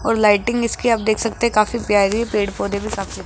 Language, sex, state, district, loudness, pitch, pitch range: Hindi, female, Rajasthan, Jaipur, -18 LUFS, 220 Hz, 205-235 Hz